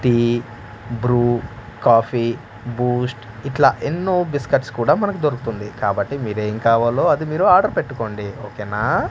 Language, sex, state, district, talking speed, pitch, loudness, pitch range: Telugu, male, Andhra Pradesh, Manyam, 140 wpm, 120 Hz, -19 LUFS, 110-130 Hz